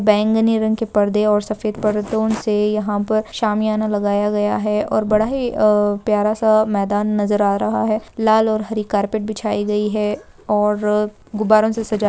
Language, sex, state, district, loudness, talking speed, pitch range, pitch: Hindi, female, Uttarakhand, Tehri Garhwal, -18 LUFS, 185 wpm, 210-215 Hz, 210 Hz